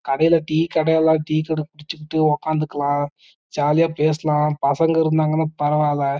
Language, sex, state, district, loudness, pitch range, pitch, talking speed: Tamil, male, Karnataka, Chamarajanagar, -19 LUFS, 150-160 Hz, 155 Hz, 105 wpm